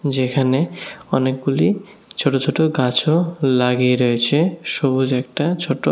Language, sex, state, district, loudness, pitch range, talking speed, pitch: Bengali, male, Tripura, West Tripura, -18 LUFS, 130-170 Hz, 110 wpm, 140 Hz